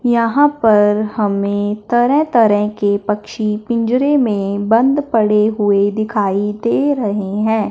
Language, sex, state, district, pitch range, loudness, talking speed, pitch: Hindi, male, Punjab, Fazilka, 205-235 Hz, -15 LUFS, 125 wpm, 215 Hz